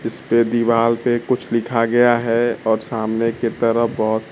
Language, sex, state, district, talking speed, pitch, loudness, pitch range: Hindi, male, Bihar, Kaimur, 165 wpm, 115 Hz, -18 LUFS, 115-120 Hz